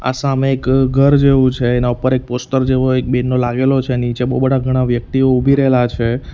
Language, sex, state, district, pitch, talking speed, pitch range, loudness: Gujarati, male, Gujarat, Valsad, 130 Hz, 200 wpm, 125-135 Hz, -15 LUFS